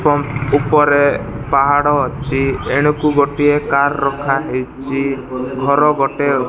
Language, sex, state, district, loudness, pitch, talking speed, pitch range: Odia, male, Odisha, Malkangiri, -15 LUFS, 140 Hz, 100 wpm, 135-145 Hz